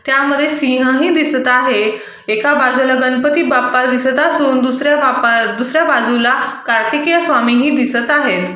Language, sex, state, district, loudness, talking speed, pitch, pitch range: Marathi, female, Maharashtra, Aurangabad, -13 LUFS, 135 wpm, 260 Hz, 250-290 Hz